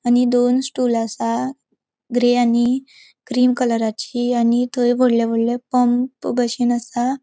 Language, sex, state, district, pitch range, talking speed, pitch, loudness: Konkani, female, Goa, North and South Goa, 235-250 Hz, 125 wpm, 245 Hz, -18 LUFS